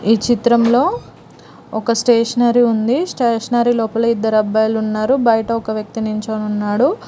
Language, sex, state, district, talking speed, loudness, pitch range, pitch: Telugu, female, Telangana, Mahabubabad, 110 wpm, -16 LUFS, 220-240 Hz, 230 Hz